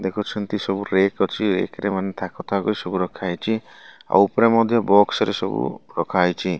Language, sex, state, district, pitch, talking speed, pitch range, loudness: Odia, male, Odisha, Malkangiri, 100 Hz, 165 wpm, 95-105 Hz, -21 LUFS